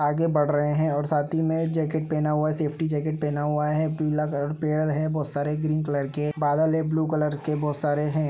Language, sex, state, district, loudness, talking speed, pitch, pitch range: Hindi, male, Uttar Pradesh, Budaun, -25 LUFS, 245 wpm, 150 Hz, 150-155 Hz